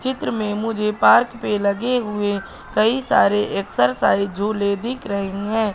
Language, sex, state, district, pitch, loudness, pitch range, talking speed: Hindi, female, Madhya Pradesh, Katni, 210 Hz, -20 LUFS, 200-225 Hz, 145 wpm